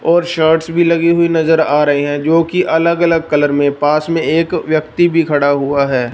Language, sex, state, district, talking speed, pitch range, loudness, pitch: Hindi, male, Punjab, Fazilka, 225 wpm, 145-170 Hz, -13 LUFS, 160 Hz